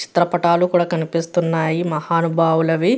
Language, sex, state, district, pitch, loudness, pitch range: Telugu, female, Andhra Pradesh, Guntur, 170 Hz, -18 LUFS, 165-175 Hz